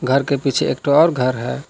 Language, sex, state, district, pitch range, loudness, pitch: Hindi, male, Jharkhand, Palamu, 130-140 Hz, -17 LUFS, 135 Hz